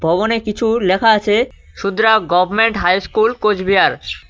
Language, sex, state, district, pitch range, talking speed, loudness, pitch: Bengali, male, West Bengal, Cooch Behar, 185-225 Hz, 125 wpm, -15 LUFS, 210 Hz